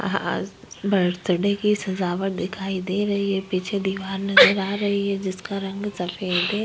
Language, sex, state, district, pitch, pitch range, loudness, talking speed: Hindi, female, Uttar Pradesh, Budaun, 195 Hz, 185-200 Hz, -23 LUFS, 155 wpm